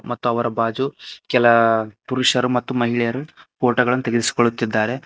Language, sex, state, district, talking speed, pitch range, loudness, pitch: Kannada, male, Karnataka, Koppal, 120 wpm, 115-125 Hz, -19 LUFS, 120 Hz